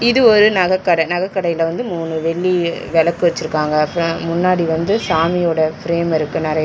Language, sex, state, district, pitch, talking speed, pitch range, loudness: Tamil, male, Tamil Nadu, Chennai, 170 Hz, 145 wpm, 160-180 Hz, -16 LUFS